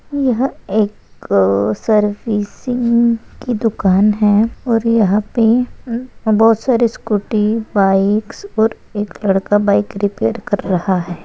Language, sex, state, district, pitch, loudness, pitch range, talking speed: Hindi, female, Maharashtra, Nagpur, 215 Hz, -16 LUFS, 205-235 Hz, 110 wpm